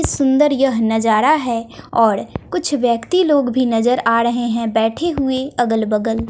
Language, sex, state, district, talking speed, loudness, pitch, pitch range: Hindi, female, Bihar, West Champaran, 160 wpm, -17 LUFS, 240 Hz, 225-270 Hz